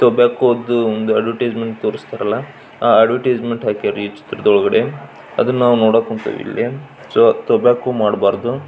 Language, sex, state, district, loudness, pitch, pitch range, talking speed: Kannada, male, Karnataka, Belgaum, -16 LUFS, 120 Hz, 110-130 Hz, 95 wpm